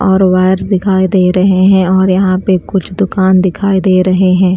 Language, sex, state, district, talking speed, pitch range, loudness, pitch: Hindi, female, Bihar, Kaimur, 195 wpm, 185-190 Hz, -10 LUFS, 190 Hz